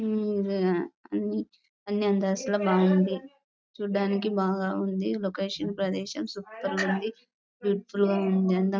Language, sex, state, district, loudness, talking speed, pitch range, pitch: Telugu, female, Andhra Pradesh, Chittoor, -28 LUFS, 95 wpm, 185-205 Hz, 195 Hz